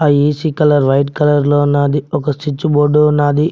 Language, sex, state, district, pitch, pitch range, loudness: Telugu, male, Telangana, Mahabubabad, 145 Hz, 145-150 Hz, -13 LUFS